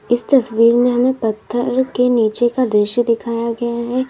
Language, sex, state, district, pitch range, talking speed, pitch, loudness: Hindi, female, Uttar Pradesh, Lalitpur, 230-245 Hz, 175 wpm, 240 Hz, -16 LUFS